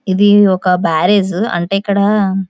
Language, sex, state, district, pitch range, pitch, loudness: Telugu, female, Andhra Pradesh, Visakhapatnam, 185-205 Hz, 195 Hz, -12 LUFS